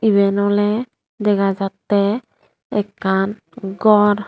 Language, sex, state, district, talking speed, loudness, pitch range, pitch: Chakma, female, Tripura, Unakoti, 85 wpm, -18 LUFS, 195-210 Hz, 205 Hz